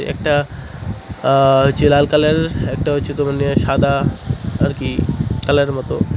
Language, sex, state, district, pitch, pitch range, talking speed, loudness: Bengali, male, West Bengal, Cooch Behar, 140 Hz, 130-145 Hz, 145 wpm, -16 LUFS